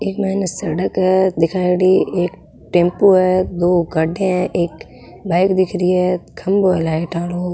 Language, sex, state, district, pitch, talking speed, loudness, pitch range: Rajasthani, female, Rajasthan, Nagaur, 180 Hz, 165 wpm, -17 LUFS, 175-190 Hz